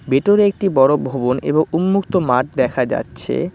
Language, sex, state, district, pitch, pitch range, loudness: Bengali, male, West Bengal, Cooch Behar, 155 Hz, 130-190 Hz, -17 LUFS